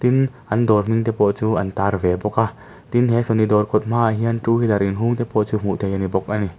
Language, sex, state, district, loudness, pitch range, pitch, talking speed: Mizo, male, Mizoram, Aizawl, -19 LUFS, 100-115 Hz, 110 Hz, 300 wpm